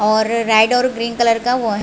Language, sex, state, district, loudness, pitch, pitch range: Hindi, female, Chhattisgarh, Raigarh, -15 LUFS, 230 Hz, 220-240 Hz